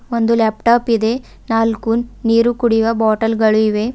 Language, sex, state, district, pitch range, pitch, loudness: Kannada, female, Karnataka, Bidar, 220-235 Hz, 225 Hz, -16 LUFS